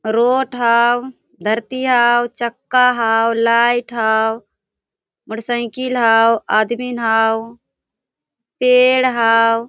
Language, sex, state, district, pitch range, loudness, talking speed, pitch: Hindi, female, Jharkhand, Sahebganj, 225-245 Hz, -15 LUFS, 85 wpm, 235 Hz